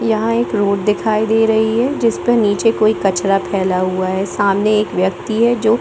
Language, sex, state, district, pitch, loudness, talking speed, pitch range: Hindi, female, Jharkhand, Sahebganj, 215 Hz, -15 LUFS, 215 wpm, 195-225 Hz